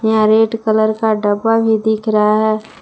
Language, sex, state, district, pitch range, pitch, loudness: Hindi, female, Jharkhand, Palamu, 215-220 Hz, 220 Hz, -14 LUFS